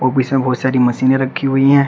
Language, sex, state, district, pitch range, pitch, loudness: Hindi, male, Uttar Pradesh, Shamli, 130-135 Hz, 130 Hz, -15 LUFS